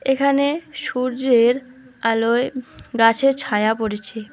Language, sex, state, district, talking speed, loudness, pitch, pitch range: Bengali, female, West Bengal, Alipurduar, 85 wpm, -19 LUFS, 255 Hz, 225-270 Hz